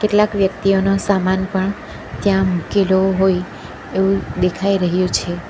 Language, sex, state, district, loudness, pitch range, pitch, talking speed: Gujarati, female, Gujarat, Valsad, -17 LUFS, 185-195 Hz, 190 Hz, 120 wpm